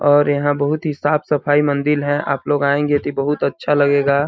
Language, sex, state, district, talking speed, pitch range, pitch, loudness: Hindi, male, Chhattisgarh, Balrampur, 180 wpm, 145-150 Hz, 145 Hz, -17 LUFS